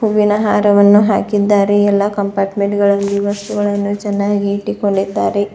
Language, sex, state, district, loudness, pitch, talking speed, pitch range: Kannada, female, Karnataka, Bidar, -14 LUFS, 205 Hz, 95 wpm, 200-205 Hz